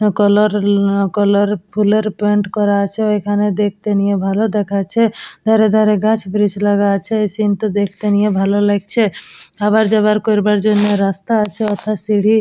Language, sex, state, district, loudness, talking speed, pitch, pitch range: Bengali, female, West Bengal, Dakshin Dinajpur, -15 LUFS, 160 wpm, 210 Hz, 205-215 Hz